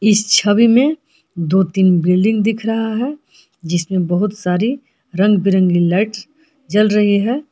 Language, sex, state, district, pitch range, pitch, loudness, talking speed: Hindi, female, Jharkhand, Palamu, 185-225 Hz, 210 Hz, -15 LUFS, 145 wpm